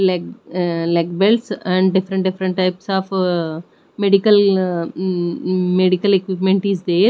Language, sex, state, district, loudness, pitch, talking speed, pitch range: English, female, Odisha, Nuapada, -18 LUFS, 185 Hz, 135 wpm, 180-195 Hz